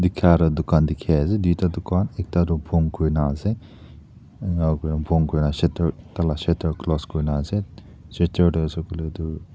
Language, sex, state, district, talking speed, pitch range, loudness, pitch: Nagamese, male, Nagaland, Dimapur, 170 wpm, 80-90 Hz, -22 LUFS, 85 Hz